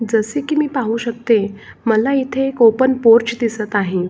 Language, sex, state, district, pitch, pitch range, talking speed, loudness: Marathi, male, Maharashtra, Solapur, 230 Hz, 220-260 Hz, 160 wpm, -16 LUFS